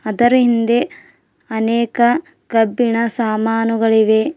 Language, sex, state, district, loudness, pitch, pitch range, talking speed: Kannada, female, Karnataka, Bidar, -16 LUFS, 230 Hz, 225-240 Hz, 70 wpm